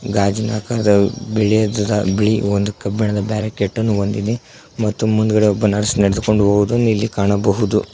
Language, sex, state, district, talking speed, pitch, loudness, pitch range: Kannada, male, Karnataka, Koppal, 120 wpm, 105 Hz, -17 LUFS, 100-110 Hz